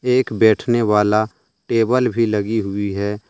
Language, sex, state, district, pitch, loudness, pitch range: Hindi, male, Jharkhand, Deoghar, 110 Hz, -18 LUFS, 105-120 Hz